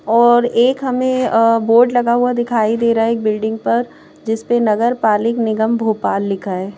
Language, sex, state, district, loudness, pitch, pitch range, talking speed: Hindi, female, Madhya Pradesh, Bhopal, -15 LUFS, 230 Hz, 220-240 Hz, 175 wpm